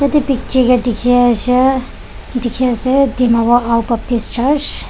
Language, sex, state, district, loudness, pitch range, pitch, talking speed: Nagamese, female, Nagaland, Dimapur, -13 LUFS, 240-260 Hz, 245 Hz, 145 wpm